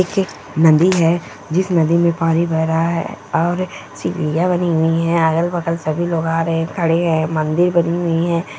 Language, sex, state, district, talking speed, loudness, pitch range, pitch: Hindi, female, Bihar, Jamui, 195 wpm, -17 LUFS, 165-175 Hz, 165 Hz